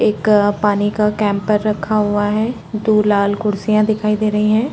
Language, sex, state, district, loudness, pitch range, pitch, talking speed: Hindi, female, Chhattisgarh, Korba, -16 LUFS, 205-215 Hz, 210 Hz, 180 wpm